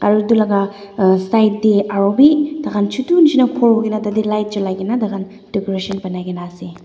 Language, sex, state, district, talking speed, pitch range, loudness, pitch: Nagamese, female, Nagaland, Dimapur, 195 wpm, 195-225 Hz, -16 LUFS, 205 Hz